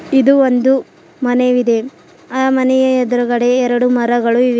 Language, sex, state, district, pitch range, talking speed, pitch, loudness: Kannada, female, Karnataka, Bidar, 245-260 Hz, 115 wpm, 250 Hz, -14 LUFS